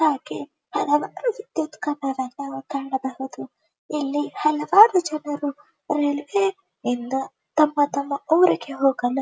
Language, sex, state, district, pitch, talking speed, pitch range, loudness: Kannada, female, Karnataka, Dharwad, 295 Hz, 80 wpm, 275-320 Hz, -23 LUFS